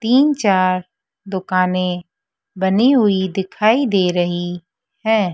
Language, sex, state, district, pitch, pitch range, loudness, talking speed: Hindi, female, Madhya Pradesh, Dhar, 195 Hz, 185-240 Hz, -17 LUFS, 100 wpm